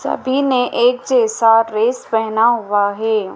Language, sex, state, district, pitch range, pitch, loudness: Hindi, female, Madhya Pradesh, Dhar, 220-245 Hz, 225 Hz, -15 LUFS